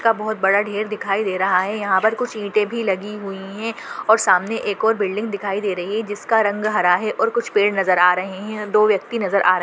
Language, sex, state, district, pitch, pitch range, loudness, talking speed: Hindi, female, Goa, North and South Goa, 205 Hz, 195-220 Hz, -19 LUFS, 260 wpm